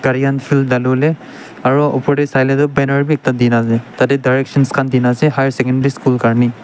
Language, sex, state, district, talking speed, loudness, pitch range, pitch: Nagamese, male, Nagaland, Dimapur, 190 wpm, -14 LUFS, 125-140 Hz, 135 Hz